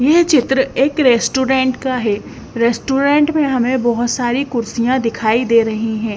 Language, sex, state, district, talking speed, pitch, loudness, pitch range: Hindi, female, Bihar, West Champaran, 145 wpm, 250 Hz, -15 LUFS, 235-265 Hz